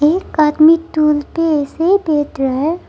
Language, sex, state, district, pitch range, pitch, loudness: Hindi, female, Arunachal Pradesh, Lower Dibang Valley, 295-330 Hz, 305 Hz, -14 LUFS